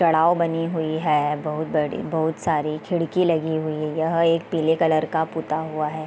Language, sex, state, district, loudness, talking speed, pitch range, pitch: Hindi, female, Chhattisgarh, Bilaspur, -22 LUFS, 195 wpm, 155-165 Hz, 160 Hz